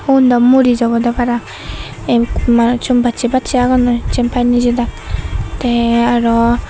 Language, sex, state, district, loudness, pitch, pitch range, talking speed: Chakma, female, Tripura, Dhalai, -13 LUFS, 240 Hz, 235-245 Hz, 115 wpm